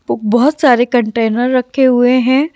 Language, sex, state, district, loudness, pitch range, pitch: Hindi, female, Haryana, Jhajjar, -12 LUFS, 240-260 Hz, 250 Hz